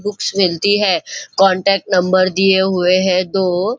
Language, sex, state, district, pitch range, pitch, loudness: Hindi, male, Maharashtra, Nagpur, 185-195 Hz, 190 Hz, -15 LUFS